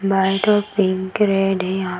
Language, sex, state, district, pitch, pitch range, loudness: Hindi, female, Bihar, Darbhanga, 195 Hz, 190-205 Hz, -18 LUFS